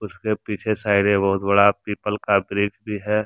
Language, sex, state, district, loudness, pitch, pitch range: Hindi, male, Jharkhand, Deoghar, -21 LUFS, 105 Hz, 100-105 Hz